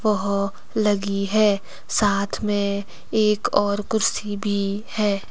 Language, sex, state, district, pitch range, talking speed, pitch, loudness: Hindi, female, Himachal Pradesh, Shimla, 200-210 Hz, 115 wpm, 205 Hz, -22 LUFS